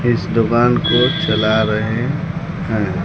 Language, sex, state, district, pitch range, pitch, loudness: Hindi, male, Bihar, West Champaran, 110-150 Hz, 120 Hz, -16 LUFS